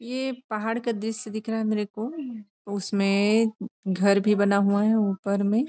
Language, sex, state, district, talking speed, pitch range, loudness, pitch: Hindi, female, Chhattisgarh, Rajnandgaon, 180 wpm, 200-225 Hz, -25 LUFS, 215 Hz